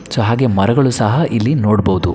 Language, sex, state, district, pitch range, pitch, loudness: Kannada, male, Karnataka, Belgaum, 105-135 Hz, 115 Hz, -14 LUFS